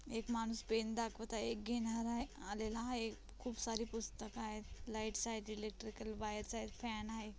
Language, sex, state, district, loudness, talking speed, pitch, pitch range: Marathi, female, Maharashtra, Chandrapur, -43 LUFS, 170 wpm, 225 Hz, 215-230 Hz